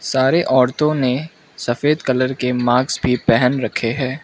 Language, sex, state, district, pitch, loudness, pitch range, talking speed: Hindi, male, Mizoram, Aizawl, 130 Hz, -17 LUFS, 125-150 Hz, 155 wpm